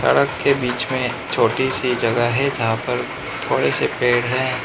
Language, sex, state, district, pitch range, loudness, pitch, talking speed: Hindi, male, Manipur, Imphal West, 115-130 Hz, -19 LUFS, 125 Hz, 180 wpm